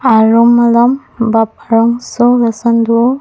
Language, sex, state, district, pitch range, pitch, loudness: Karbi, female, Assam, Karbi Anglong, 225-240 Hz, 235 Hz, -11 LUFS